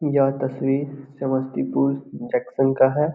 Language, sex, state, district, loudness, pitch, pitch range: Hindi, male, Bihar, Samastipur, -22 LUFS, 135 Hz, 130-140 Hz